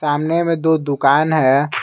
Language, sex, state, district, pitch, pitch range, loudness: Hindi, male, Jharkhand, Garhwa, 155 Hz, 140-160 Hz, -16 LUFS